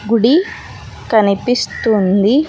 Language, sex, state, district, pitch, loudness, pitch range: Telugu, female, Andhra Pradesh, Sri Satya Sai, 230 Hz, -14 LUFS, 205-250 Hz